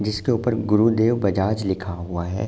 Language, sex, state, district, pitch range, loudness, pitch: Hindi, male, Uttar Pradesh, Jalaun, 95-115 Hz, -21 LUFS, 105 Hz